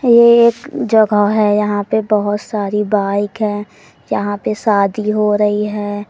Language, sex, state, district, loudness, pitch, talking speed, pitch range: Hindi, female, Madhya Pradesh, Umaria, -15 LUFS, 210 Hz, 155 wpm, 205-220 Hz